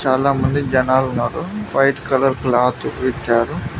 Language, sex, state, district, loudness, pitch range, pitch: Telugu, male, Telangana, Mahabubabad, -18 LUFS, 130-140 Hz, 130 Hz